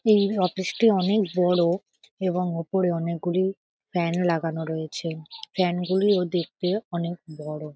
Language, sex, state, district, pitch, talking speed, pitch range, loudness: Bengali, female, West Bengal, Kolkata, 180 Hz, 130 wpm, 165-190 Hz, -25 LUFS